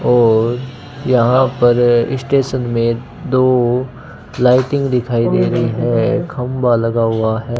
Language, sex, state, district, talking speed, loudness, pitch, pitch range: Hindi, male, Rajasthan, Bikaner, 120 wpm, -15 LUFS, 125 Hz, 115-130 Hz